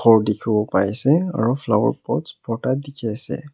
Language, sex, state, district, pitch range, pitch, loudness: Nagamese, male, Nagaland, Kohima, 105-135 Hz, 115 Hz, -20 LUFS